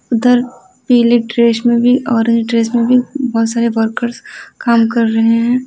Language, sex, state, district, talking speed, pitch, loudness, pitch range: Hindi, female, Odisha, Nuapada, 180 wpm, 235 Hz, -13 LUFS, 230-245 Hz